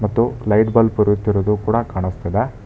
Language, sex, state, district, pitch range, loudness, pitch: Kannada, male, Karnataka, Bangalore, 105-115 Hz, -18 LUFS, 105 Hz